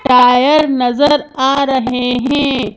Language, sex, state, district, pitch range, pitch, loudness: Hindi, female, Madhya Pradesh, Bhopal, 250-285 Hz, 265 Hz, -12 LUFS